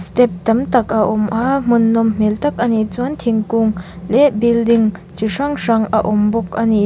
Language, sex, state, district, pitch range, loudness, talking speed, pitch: Mizo, female, Mizoram, Aizawl, 215-235 Hz, -16 LUFS, 210 wpm, 225 Hz